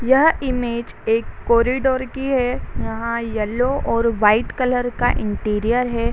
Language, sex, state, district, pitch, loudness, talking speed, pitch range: Hindi, female, Bihar, Sitamarhi, 240 Hz, -20 LUFS, 135 wpm, 230-255 Hz